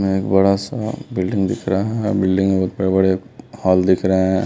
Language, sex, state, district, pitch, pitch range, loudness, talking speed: Hindi, male, Bihar, West Champaran, 95 Hz, 95-105 Hz, -18 LUFS, 215 wpm